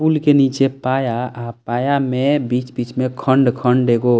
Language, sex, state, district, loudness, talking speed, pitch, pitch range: Bhojpuri, male, Bihar, East Champaran, -17 LUFS, 170 wpm, 130 Hz, 120-135 Hz